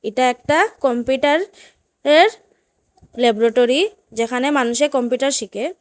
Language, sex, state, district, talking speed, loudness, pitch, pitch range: Bengali, female, Assam, Hailakandi, 95 wpm, -17 LUFS, 265 Hz, 240-300 Hz